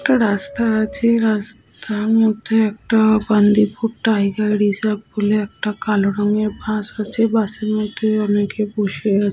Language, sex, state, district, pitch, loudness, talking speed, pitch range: Bengali, female, West Bengal, Jhargram, 215 Hz, -18 LUFS, 135 wpm, 210-220 Hz